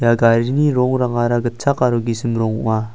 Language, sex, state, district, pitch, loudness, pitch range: Garo, male, Meghalaya, South Garo Hills, 120 Hz, -17 LUFS, 115-125 Hz